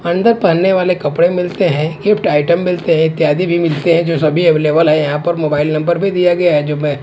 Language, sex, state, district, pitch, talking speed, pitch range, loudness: Hindi, male, Punjab, Pathankot, 170 Hz, 240 wpm, 155-180 Hz, -13 LUFS